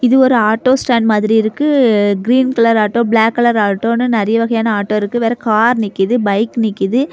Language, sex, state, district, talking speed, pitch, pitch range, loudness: Tamil, female, Tamil Nadu, Kanyakumari, 175 wpm, 230 Hz, 215-245 Hz, -13 LUFS